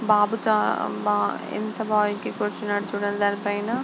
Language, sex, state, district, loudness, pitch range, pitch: Telugu, female, Andhra Pradesh, Guntur, -24 LUFS, 205-215 Hz, 205 Hz